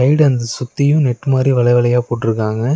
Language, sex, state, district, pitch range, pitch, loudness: Tamil, male, Tamil Nadu, Nilgiris, 120-135 Hz, 125 Hz, -15 LUFS